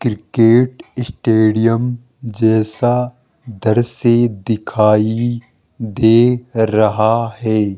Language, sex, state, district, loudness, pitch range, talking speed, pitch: Hindi, male, Rajasthan, Jaipur, -15 LUFS, 110-120 Hz, 60 wpm, 115 Hz